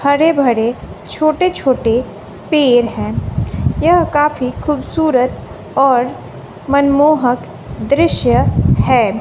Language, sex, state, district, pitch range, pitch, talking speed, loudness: Hindi, female, Bihar, West Champaran, 250-305 Hz, 280 Hz, 85 wpm, -14 LUFS